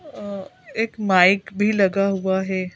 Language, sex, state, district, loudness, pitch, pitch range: Hindi, female, Madhya Pradesh, Bhopal, -19 LUFS, 195 Hz, 190-205 Hz